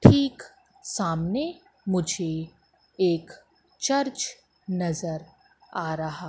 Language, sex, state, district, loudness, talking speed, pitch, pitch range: Hindi, female, Madhya Pradesh, Katni, -27 LUFS, 75 wpm, 185 Hz, 165-275 Hz